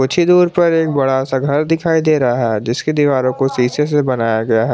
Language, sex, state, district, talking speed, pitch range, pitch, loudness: Hindi, male, Jharkhand, Garhwa, 240 wpm, 125-155 Hz, 135 Hz, -15 LUFS